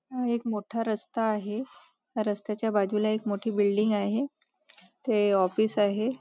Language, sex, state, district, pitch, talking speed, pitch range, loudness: Marathi, female, Maharashtra, Nagpur, 215 Hz, 145 wpm, 205-230 Hz, -28 LUFS